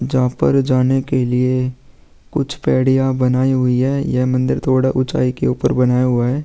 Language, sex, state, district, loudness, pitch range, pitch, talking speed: Hindi, male, Bihar, Vaishali, -17 LUFS, 125-130 Hz, 130 Hz, 175 wpm